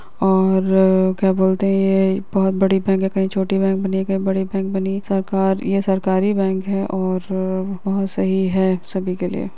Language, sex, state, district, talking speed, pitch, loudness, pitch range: Hindi, female, Bihar, Bhagalpur, 140 wpm, 190 Hz, -19 LUFS, 190-195 Hz